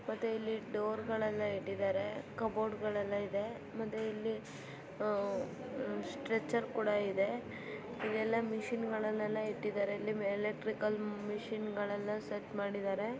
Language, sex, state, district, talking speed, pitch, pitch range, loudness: Kannada, female, Karnataka, Bijapur, 85 wpm, 215 Hz, 205-220 Hz, -38 LUFS